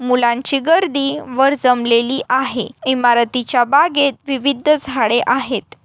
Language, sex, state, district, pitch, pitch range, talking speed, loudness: Marathi, female, Maharashtra, Aurangabad, 260 Hz, 245-280 Hz, 105 wpm, -16 LUFS